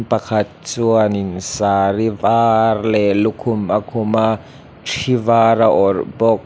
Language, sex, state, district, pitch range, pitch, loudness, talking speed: Mizo, male, Mizoram, Aizawl, 105-115 Hz, 110 Hz, -16 LUFS, 140 wpm